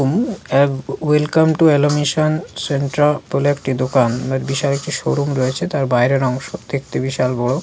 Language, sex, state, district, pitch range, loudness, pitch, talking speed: Bengali, male, West Bengal, Kolkata, 130-150 Hz, -17 LUFS, 140 Hz, 135 wpm